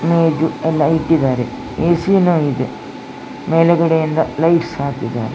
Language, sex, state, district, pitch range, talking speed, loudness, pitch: Kannada, female, Karnataka, Dakshina Kannada, 140-165 Hz, 110 wpm, -16 LUFS, 160 Hz